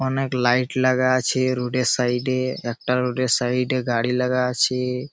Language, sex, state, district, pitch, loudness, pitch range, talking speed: Bengali, male, West Bengal, Malda, 125 Hz, -21 LUFS, 125-130 Hz, 185 wpm